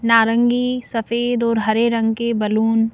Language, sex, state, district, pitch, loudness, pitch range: Hindi, female, Madhya Pradesh, Bhopal, 230 Hz, -18 LUFS, 225-235 Hz